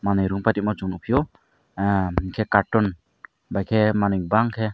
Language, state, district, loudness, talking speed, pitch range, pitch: Kokborok, Tripura, Dhalai, -22 LUFS, 165 wpm, 95-110 Hz, 100 Hz